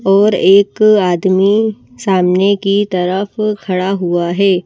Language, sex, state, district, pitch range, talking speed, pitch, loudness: Hindi, female, Madhya Pradesh, Bhopal, 185-205 Hz, 105 wpm, 195 Hz, -13 LUFS